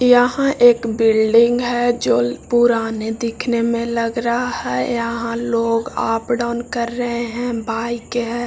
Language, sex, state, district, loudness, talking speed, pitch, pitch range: Hindi, male, Bihar, Jahanabad, -18 LUFS, 150 wpm, 235 Hz, 230-240 Hz